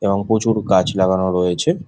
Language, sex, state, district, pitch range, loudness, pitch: Bengali, male, West Bengal, Jhargram, 95-105 Hz, -17 LUFS, 100 Hz